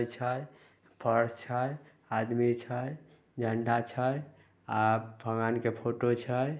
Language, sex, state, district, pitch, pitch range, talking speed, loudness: Maithili, male, Bihar, Samastipur, 120 Hz, 115-130 Hz, 110 wpm, -32 LUFS